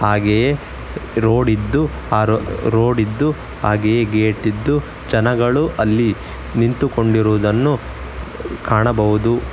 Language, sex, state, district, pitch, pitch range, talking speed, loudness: Kannada, male, Karnataka, Bangalore, 110 Hz, 105-120 Hz, 90 wpm, -17 LUFS